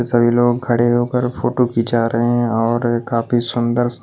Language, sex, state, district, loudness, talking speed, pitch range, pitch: Hindi, male, Maharashtra, Washim, -17 LUFS, 165 wpm, 115-120 Hz, 120 Hz